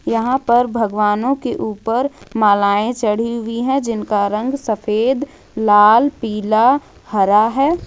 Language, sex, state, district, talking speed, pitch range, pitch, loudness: Hindi, female, Jharkhand, Ranchi, 120 wpm, 210-255 Hz, 225 Hz, -16 LUFS